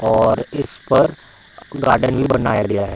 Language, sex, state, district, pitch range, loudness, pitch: Hindi, male, Bihar, Bhagalpur, 110-130 Hz, -17 LUFS, 120 Hz